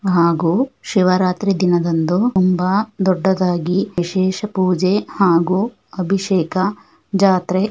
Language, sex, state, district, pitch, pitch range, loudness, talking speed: Kannada, female, Karnataka, Shimoga, 185 Hz, 180-195 Hz, -17 LUFS, 85 wpm